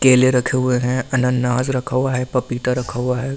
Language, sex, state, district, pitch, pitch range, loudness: Hindi, male, Delhi, New Delhi, 125 Hz, 125-130 Hz, -19 LUFS